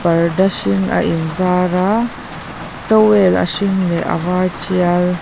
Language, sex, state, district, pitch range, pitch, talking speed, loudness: Mizo, female, Mizoram, Aizawl, 170-190 Hz, 180 Hz, 150 wpm, -14 LUFS